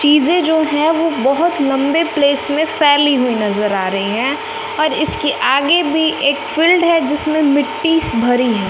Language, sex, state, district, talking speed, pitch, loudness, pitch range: Hindi, female, Bihar, West Champaran, 170 wpm, 295 Hz, -14 LUFS, 270-320 Hz